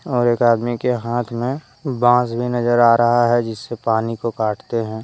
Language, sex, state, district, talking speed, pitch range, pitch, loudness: Hindi, male, Jharkhand, Deoghar, 200 wpm, 115-120 Hz, 120 Hz, -18 LUFS